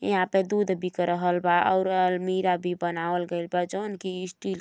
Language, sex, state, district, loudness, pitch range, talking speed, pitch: Bhojpuri, female, Uttar Pradesh, Gorakhpur, -26 LUFS, 175-190 Hz, 205 wpm, 180 Hz